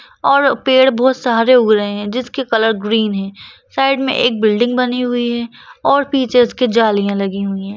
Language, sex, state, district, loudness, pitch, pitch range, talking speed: Hindi, female, Bihar, Jahanabad, -14 LUFS, 240 Hz, 215-255 Hz, 195 wpm